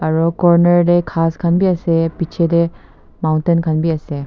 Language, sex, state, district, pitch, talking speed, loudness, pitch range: Nagamese, female, Nagaland, Kohima, 170 Hz, 180 wpm, -15 LUFS, 160-170 Hz